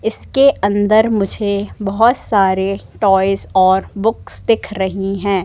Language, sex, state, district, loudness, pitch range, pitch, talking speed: Hindi, female, Madhya Pradesh, Katni, -15 LUFS, 195-220 Hz, 200 Hz, 120 wpm